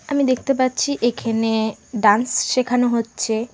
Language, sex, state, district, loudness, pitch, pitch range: Bengali, female, West Bengal, Alipurduar, -19 LUFS, 240 Hz, 225-255 Hz